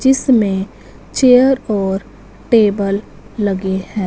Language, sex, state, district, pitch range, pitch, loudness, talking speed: Hindi, male, Punjab, Fazilka, 195-250 Hz, 205 Hz, -15 LUFS, 90 wpm